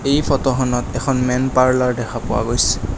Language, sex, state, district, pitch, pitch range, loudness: Assamese, male, Assam, Kamrup Metropolitan, 130 Hz, 125-135 Hz, -18 LUFS